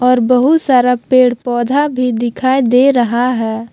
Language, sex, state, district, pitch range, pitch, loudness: Hindi, female, Jharkhand, Palamu, 240-260 Hz, 250 Hz, -12 LUFS